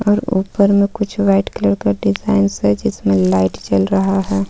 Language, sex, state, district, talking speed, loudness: Hindi, female, Jharkhand, Ranchi, 185 wpm, -16 LUFS